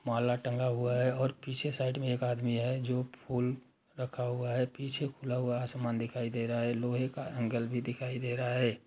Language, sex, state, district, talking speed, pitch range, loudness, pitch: Hindi, male, Uttar Pradesh, Ghazipur, 205 wpm, 120-130 Hz, -34 LUFS, 125 Hz